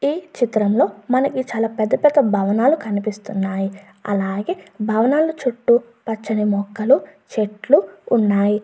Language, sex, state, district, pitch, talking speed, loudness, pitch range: Telugu, female, Andhra Pradesh, Guntur, 215 Hz, 110 wpm, -19 LUFS, 205-250 Hz